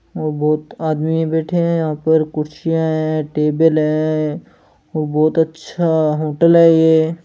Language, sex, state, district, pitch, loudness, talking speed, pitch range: Hindi, male, Rajasthan, Churu, 155 Hz, -16 LUFS, 140 wpm, 155-160 Hz